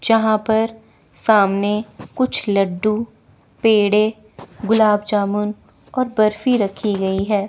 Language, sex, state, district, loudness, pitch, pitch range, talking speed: Hindi, female, Chandigarh, Chandigarh, -18 LUFS, 215 Hz, 205-225 Hz, 105 wpm